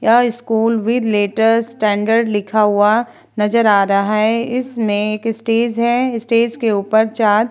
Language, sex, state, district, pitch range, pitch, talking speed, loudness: Hindi, female, Bihar, Vaishali, 210-230 Hz, 225 Hz, 160 wpm, -16 LUFS